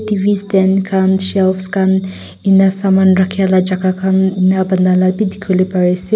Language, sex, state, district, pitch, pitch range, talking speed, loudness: Nagamese, female, Nagaland, Kohima, 190 Hz, 185-195 Hz, 135 wpm, -13 LUFS